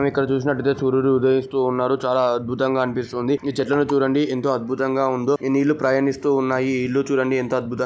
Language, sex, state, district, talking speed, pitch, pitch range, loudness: Telugu, male, Andhra Pradesh, Guntur, 170 wpm, 130 Hz, 130-140 Hz, -20 LUFS